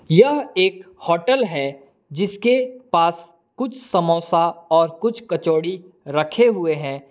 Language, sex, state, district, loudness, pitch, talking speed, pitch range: Hindi, male, Jharkhand, Palamu, -20 LUFS, 170 Hz, 120 wpm, 165-230 Hz